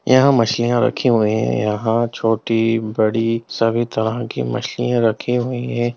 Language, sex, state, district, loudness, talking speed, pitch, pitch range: Hindi, male, Bihar, Jamui, -18 LUFS, 150 wpm, 115 Hz, 110-120 Hz